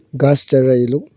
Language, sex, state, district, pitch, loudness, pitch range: Hindi, male, Arunachal Pradesh, Longding, 135 Hz, -14 LUFS, 130-140 Hz